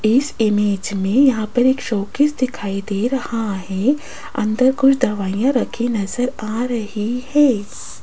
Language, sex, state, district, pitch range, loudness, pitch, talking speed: Hindi, female, Rajasthan, Jaipur, 210-260 Hz, -19 LUFS, 235 Hz, 140 wpm